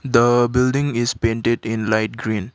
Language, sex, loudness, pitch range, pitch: English, male, -19 LUFS, 110-125 Hz, 115 Hz